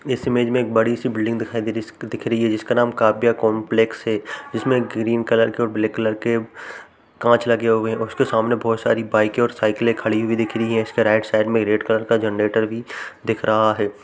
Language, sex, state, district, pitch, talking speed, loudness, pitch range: Hindi, male, Uttar Pradesh, Jalaun, 115 Hz, 250 wpm, -20 LUFS, 110-115 Hz